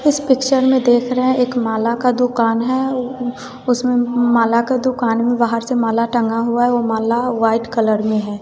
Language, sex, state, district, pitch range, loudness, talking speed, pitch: Hindi, female, Bihar, West Champaran, 230-255 Hz, -16 LUFS, 215 wpm, 240 Hz